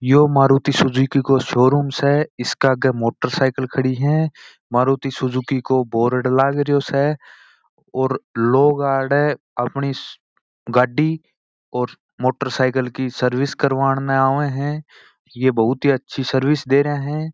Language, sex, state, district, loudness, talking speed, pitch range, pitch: Marwari, male, Rajasthan, Churu, -18 LUFS, 135 wpm, 130-140 Hz, 135 Hz